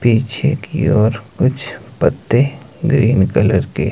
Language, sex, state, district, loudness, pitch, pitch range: Hindi, male, Himachal Pradesh, Shimla, -16 LUFS, 125 Hz, 115-145 Hz